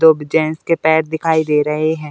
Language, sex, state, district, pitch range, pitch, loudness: Hindi, male, Uttar Pradesh, Deoria, 150-160 Hz, 160 Hz, -16 LUFS